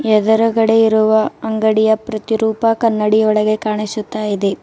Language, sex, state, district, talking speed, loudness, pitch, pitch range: Kannada, female, Karnataka, Bidar, 90 wpm, -15 LUFS, 220 Hz, 215-220 Hz